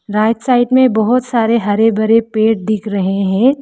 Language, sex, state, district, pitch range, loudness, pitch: Hindi, female, Arunachal Pradesh, Lower Dibang Valley, 215-245 Hz, -13 LUFS, 225 Hz